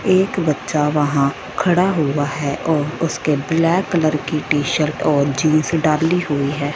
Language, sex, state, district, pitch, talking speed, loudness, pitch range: Hindi, female, Punjab, Fazilka, 155 Hz, 160 wpm, -18 LUFS, 145-165 Hz